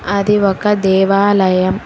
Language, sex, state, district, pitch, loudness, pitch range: Telugu, female, Telangana, Hyderabad, 195 Hz, -13 LUFS, 190-205 Hz